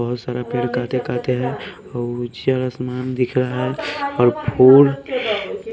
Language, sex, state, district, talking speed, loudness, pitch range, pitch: Hindi, male, Haryana, Rohtak, 135 wpm, -19 LUFS, 125-135 Hz, 125 Hz